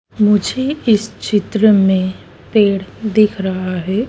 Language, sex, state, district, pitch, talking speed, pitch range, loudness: Hindi, female, Madhya Pradesh, Dhar, 210 Hz, 115 wpm, 190-220 Hz, -15 LUFS